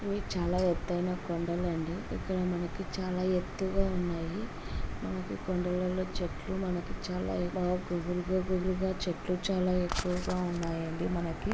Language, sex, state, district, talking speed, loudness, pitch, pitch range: Telugu, female, Andhra Pradesh, Anantapur, 110 wpm, -33 LUFS, 180 Hz, 175-185 Hz